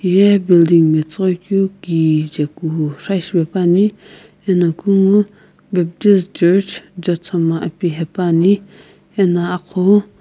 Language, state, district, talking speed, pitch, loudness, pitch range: Sumi, Nagaland, Kohima, 100 wpm, 180 Hz, -15 LUFS, 170-195 Hz